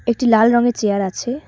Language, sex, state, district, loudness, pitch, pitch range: Bengali, female, West Bengal, Cooch Behar, -16 LUFS, 235 Hz, 215-240 Hz